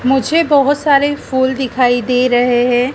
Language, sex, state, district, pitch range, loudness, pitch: Hindi, female, Madhya Pradesh, Dhar, 245-285 Hz, -13 LUFS, 260 Hz